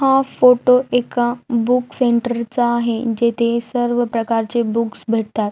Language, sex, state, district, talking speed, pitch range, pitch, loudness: Marathi, female, Maharashtra, Aurangabad, 130 wpm, 230-245 Hz, 235 Hz, -17 LUFS